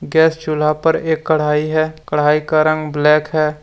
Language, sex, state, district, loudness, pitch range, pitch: Hindi, male, Jharkhand, Deoghar, -16 LUFS, 150-155 Hz, 155 Hz